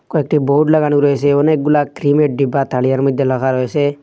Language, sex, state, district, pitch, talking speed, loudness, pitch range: Bengali, male, Assam, Hailakandi, 145 Hz, 180 wpm, -14 LUFS, 135-150 Hz